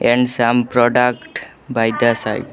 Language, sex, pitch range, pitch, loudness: English, male, 115-125 Hz, 120 Hz, -16 LUFS